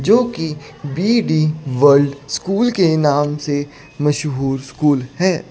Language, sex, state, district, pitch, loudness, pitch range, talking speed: Hindi, male, Chandigarh, Chandigarh, 150 Hz, -17 LUFS, 145-175 Hz, 120 wpm